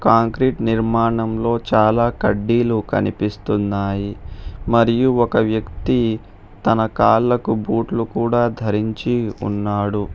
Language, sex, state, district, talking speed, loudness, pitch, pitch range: Telugu, male, Telangana, Hyderabad, 85 wpm, -18 LUFS, 110 Hz, 105-115 Hz